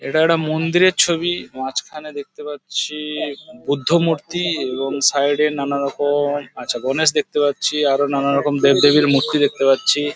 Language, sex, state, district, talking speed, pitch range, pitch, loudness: Bengali, male, West Bengal, Paschim Medinipur, 155 wpm, 140-155 Hz, 145 Hz, -18 LUFS